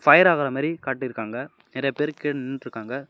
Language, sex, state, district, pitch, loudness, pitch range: Tamil, male, Tamil Nadu, Namakkal, 135 Hz, -24 LUFS, 130-145 Hz